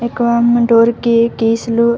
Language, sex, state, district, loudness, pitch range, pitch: Telugu, female, Andhra Pradesh, Visakhapatnam, -13 LUFS, 230-235 Hz, 235 Hz